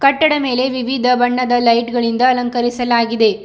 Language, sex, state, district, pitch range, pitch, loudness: Kannada, female, Karnataka, Bidar, 235-255 Hz, 245 Hz, -15 LUFS